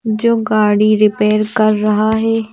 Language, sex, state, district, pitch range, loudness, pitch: Hindi, female, Madhya Pradesh, Bhopal, 210-220 Hz, -13 LUFS, 215 Hz